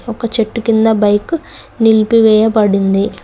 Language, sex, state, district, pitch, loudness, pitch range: Telugu, female, Telangana, Mahabubabad, 220 Hz, -12 LUFS, 210-230 Hz